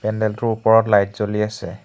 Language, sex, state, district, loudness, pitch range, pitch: Assamese, male, Assam, Hailakandi, -18 LUFS, 105-110 Hz, 105 Hz